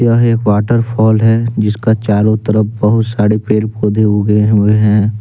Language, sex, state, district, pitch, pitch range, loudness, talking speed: Hindi, male, Jharkhand, Deoghar, 110 Hz, 105-115 Hz, -12 LUFS, 160 wpm